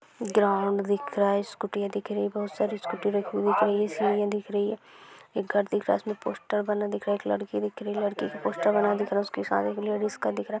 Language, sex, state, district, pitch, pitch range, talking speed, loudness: Hindi, female, Maharashtra, Nagpur, 205 Hz, 200-210 Hz, 275 wpm, -28 LUFS